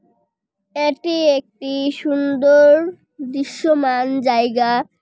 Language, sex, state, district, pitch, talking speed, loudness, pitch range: Bengali, female, West Bengal, Jalpaiguri, 280 Hz, 60 wpm, -17 LUFS, 260-295 Hz